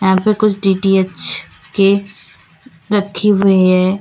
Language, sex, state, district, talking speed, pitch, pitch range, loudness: Hindi, female, Uttar Pradesh, Lalitpur, 120 wpm, 195 Hz, 190-205 Hz, -13 LUFS